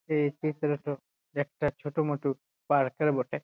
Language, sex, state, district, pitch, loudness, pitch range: Bengali, male, West Bengal, Jalpaiguri, 145 Hz, -30 LUFS, 140-150 Hz